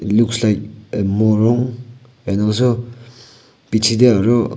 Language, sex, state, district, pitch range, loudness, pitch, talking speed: Nagamese, male, Nagaland, Kohima, 105-120 Hz, -16 LUFS, 115 Hz, 105 wpm